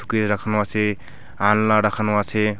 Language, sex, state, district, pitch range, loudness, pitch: Bengali, male, West Bengal, Alipurduar, 105-110 Hz, -20 LUFS, 105 Hz